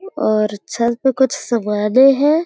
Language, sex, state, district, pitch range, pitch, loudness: Hindi, female, Uttar Pradesh, Gorakhpur, 215-275 Hz, 250 Hz, -16 LUFS